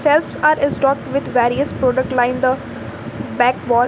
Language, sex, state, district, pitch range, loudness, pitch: English, female, Jharkhand, Garhwa, 240-275 Hz, -17 LUFS, 255 Hz